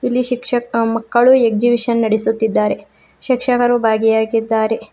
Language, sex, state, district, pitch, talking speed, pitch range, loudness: Kannada, female, Karnataka, Bangalore, 230 Hz, 85 wpm, 225-245 Hz, -15 LUFS